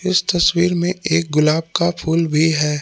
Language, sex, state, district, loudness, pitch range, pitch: Hindi, male, Jharkhand, Palamu, -17 LUFS, 155-175 Hz, 165 Hz